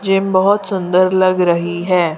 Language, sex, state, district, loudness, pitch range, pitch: Hindi, female, Haryana, Rohtak, -14 LUFS, 175-195 Hz, 185 Hz